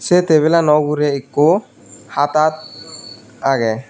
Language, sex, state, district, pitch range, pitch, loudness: Chakma, male, Tripura, Unakoti, 145-155 Hz, 150 Hz, -15 LUFS